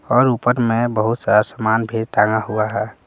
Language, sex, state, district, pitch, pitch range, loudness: Hindi, male, Jharkhand, Palamu, 115 Hz, 110-120 Hz, -18 LUFS